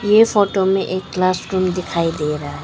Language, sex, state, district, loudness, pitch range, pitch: Hindi, female, Arunachal Pradesh, Papum Pare, -18 LUFS, 170-195 Hz, 185 Hz